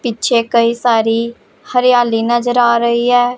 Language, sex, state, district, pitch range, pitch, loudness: Hindi, female, Punjab, Pathankot, 235-245 Hz, 235 Hz, -13 LUFS